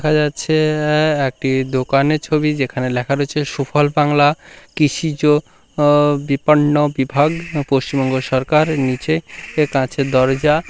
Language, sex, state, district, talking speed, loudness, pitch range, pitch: Bengali, male, West Bengal, Kolkata, 120 wpm, -17 LUFS, 135-150 Hz, 145 Hz